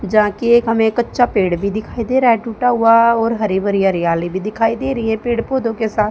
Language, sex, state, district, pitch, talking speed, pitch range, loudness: Hindi, female, Haryana, Charkhi Dadri, 225 Hz, 255 wpm, 210-235 Hz, -16 LUFS